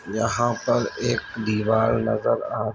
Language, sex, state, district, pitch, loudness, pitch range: Hindi, male, Uttar Pradesh, Etah, 115 Hz, -23 LUFS, 110-115 Hz